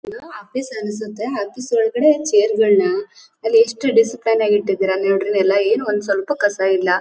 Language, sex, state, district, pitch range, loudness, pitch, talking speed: Kannada, female, Karnataka, Dharwad, 200-300 Hz, -18 LUFS, 225 Hz, 170 wpm